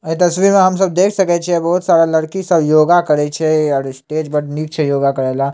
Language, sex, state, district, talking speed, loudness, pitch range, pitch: Maithili, male, Bihar, Samastipur, 215 wpm, -14 LUFS, 150-175 Hz, 160 Hz